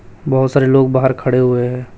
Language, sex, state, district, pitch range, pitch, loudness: Hindi, male, Chhattisgarh, Raipur, 125-130 Hz, 130 Hz, -14 LUFS